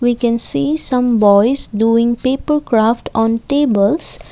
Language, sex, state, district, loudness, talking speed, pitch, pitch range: English, female, Assam, Kamrup Metropolitan, -14 LUFS, 140 wpm, 230 Hz, 220-250 Hz